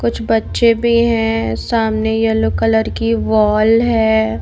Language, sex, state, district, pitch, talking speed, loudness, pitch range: Hindi, female, Bihar, Patna, 225 Hz, 135 wpm, -15 LUFS, 220-230 Hz